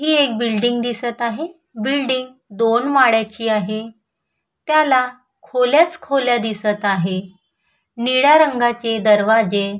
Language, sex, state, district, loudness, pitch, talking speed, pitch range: Marathi, female, Maharashtra, Sindhudurg, -17 LUFS, 240 Hz, 110 wpm, 220-265 Hz